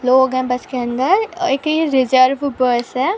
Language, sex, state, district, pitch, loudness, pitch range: Hindi, female, Jharkhand, Sahebganj, 260 Hz, -16 LUFS, 250-285 Hz